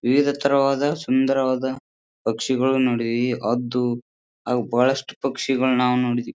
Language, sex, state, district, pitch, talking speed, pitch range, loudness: Kannada, male, Karnataka, Bijapur, 125 Hz, 105 wpm, 120-130 Hz, -22 LUFS